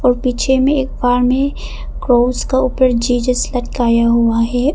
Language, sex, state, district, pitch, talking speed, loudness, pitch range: Hindi, female, Arunachal Pradesh, Papum Pare, 250 Hz, 150 wpm, -15 LUFS, 245-260 Hz